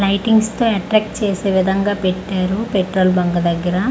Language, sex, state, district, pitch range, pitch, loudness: Telugu, female, Andhra Pradesh, Manyam, 185-215 Hz, 195 Hz, -17 LUFS